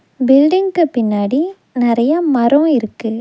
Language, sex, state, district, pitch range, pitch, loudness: Tamil, female, Tamil Nadu, Nilgiris, 235-315 Hz, 265 Hz, -14 LUFS